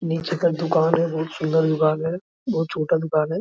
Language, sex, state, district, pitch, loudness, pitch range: Hindi, male, Bihar, Araria, 160 Hz, -22 LUFS, 160-170 Hz